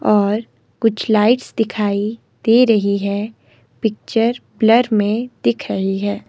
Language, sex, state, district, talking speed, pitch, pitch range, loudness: Hindi, female, Himachal Pradesh, Shimla, 125 wpm, 215 Hz, 205-225 Hz, -17 LUFS